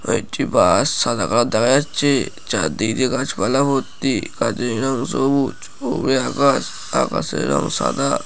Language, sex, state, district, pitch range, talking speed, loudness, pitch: Bengali, male, West Bengal, Paschim Medinipur, 120-140 Hz, 160 wpm, -19 LUFS, 135 Hz